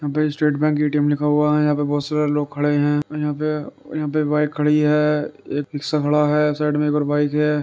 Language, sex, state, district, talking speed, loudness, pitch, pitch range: Hindi, male, Uttar Pradesh, Muzaffarnagar, 250 wpm, -20 LUFS, 150 Hz, 145-150 Hz